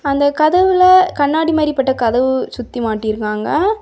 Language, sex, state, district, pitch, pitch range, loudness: Tamil, female, Tamil Nadu, Kanyakumari, 285 Hz, 245-320 Hz, -14 LUFS